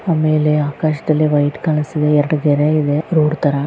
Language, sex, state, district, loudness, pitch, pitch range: Kannada, female, Karnataka, Raichur, -16 LUFS, 150 Hz, 145-155 Hz